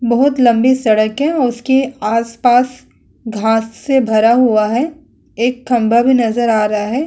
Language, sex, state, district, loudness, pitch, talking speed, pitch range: Hindi, female, Uttar Pradesh, Muzaffarnagar, -14 LUFS, 240 Hz, 160 wpm, 225-260 Hz